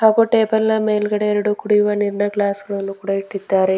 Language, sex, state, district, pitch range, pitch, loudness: Kannada, female, Karnataka, Bidar, 200-215 Hz, 210 Hz, -18 LUFS